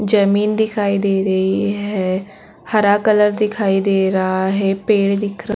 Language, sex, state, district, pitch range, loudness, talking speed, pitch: Hindi, female, Chhattisgarh, Korba, 195-210 Hz, -17 LUFS, 160 wpm, 200 Hz